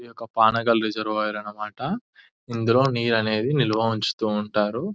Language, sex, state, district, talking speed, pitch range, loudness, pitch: Telugu, male, Telangana, Nalgonda, 145 wpm, 110-120 Hz, -23 LUFS, 110 Hz